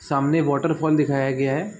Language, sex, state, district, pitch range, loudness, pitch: Hindi, male, Chhattisgarh, Raigarh, 140-160 Hz, -21 LUFS, 150 Hz